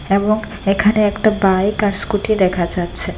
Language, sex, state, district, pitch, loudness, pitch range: Bengali, female, Assam, Hailakandi, 205 Hz, -15 LUFS, 195-215 Hz